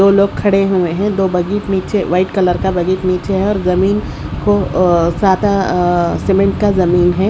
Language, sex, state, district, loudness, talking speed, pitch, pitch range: Hindi, female, Odisha, Sambalpur, -14 LUFS, 190 wpm, 190 Hz, 180-200 Hz